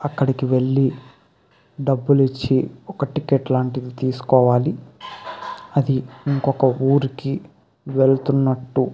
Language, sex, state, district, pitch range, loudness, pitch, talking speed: Telugu, male, Andhra Pradesh, Krishna, 130-140 Hz, -20 LUFS, 135 Hz, 75 wpm